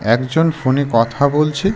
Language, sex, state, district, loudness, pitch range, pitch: Bengali, male, West Bengal, Darjeeling, -16 LUFS, 120-160 Hz, 140 Hz